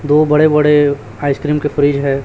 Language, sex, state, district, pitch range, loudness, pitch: Hindi, male, Chhattisgarh, Raipur, 140-150 Hz, -13 LUFS, 145 Hz